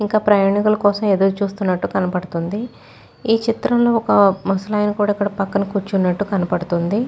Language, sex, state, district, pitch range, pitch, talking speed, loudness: Telugu, female, Andhra Pradesh, Chittoor, 195-210 Hz, 200 Hz, 125 wpm, -18 LUFS